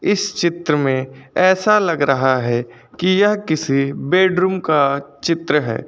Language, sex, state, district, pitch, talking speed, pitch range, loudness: Hindi, male, Uttar Pradesh, Lucknow, 155 Hz, 145 wpm, 135-185 Hz, -17 LUFS